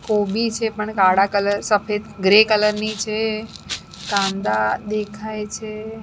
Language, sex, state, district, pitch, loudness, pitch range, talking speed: Gujarati, female, Maharashtra, Mumbai Suburban, 210 Hz, -20 LUFS, 200-215 Hz, 130 wpm